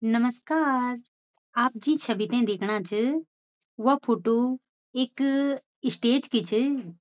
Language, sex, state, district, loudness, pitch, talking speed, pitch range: Garhwali, female, Uttarakhand, Tehri Garhwal, -26 LUFS, 245 Hz, 110 wpm, 230-270 Hz